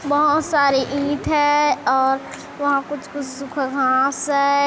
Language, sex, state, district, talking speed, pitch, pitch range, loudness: Hindi, female, Chhattisgarh, Kabirdham, 130 wpm, 280 Hz, 270-290 Hz, -19 LUFS